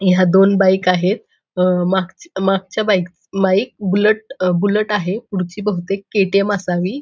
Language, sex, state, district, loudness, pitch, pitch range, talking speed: Marathi, female, Maharashtra, Pune, -17 LUFS, 195 Hz, 185-205 Hz, 135 wpm